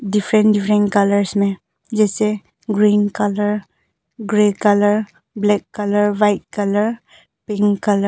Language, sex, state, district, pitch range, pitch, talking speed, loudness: Hindi, female, Arunachal Pradesh, Papum Pare, 205-210 Hz, 205 Hz, 120 wpm, -17 LUFS